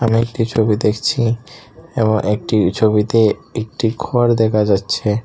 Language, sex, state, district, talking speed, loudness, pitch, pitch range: Bengali, male, Tripura, Unakoti, 125 wpm, -16 LUFS, 110 Hz, 105-115 Hz